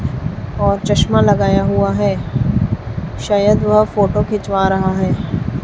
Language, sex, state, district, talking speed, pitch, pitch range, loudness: Hindi, female, Chhattisgarh, Raipur, 115 wpm, 195 Hz, 185-210 Hz, -16 LUFS